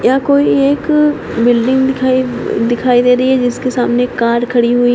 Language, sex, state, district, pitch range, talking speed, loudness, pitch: Hindi, female, Uttar Pradesh, Shamli, 240-260 Hz, 180 wpm, -12 LUFS, 250 Hz